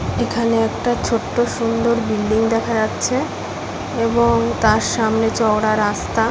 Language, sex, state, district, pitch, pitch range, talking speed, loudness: Bengali, female, West Bengal, Paschim Medinipur, 225 Hz, 220-235 Hz, 115 wpm, -18 LUFS